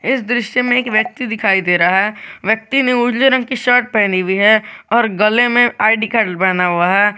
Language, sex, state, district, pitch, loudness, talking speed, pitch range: Hindi, male, Jharkhand, Garhwa, 220 Hz, -14 LUFS, 215 wpm, 200-245 Hz